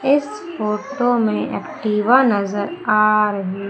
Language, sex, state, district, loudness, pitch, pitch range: Hindi, female, Madhya Pradesh, Umaria, -18 LUFS, 215 Hz, 210-260 Hz